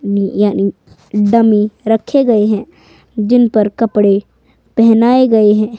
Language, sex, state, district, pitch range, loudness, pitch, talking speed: Hindi, female, Himachal Pradesh, Shimla, 205-230 Hz, -12 LUFS, 215 Hz, 125 wpm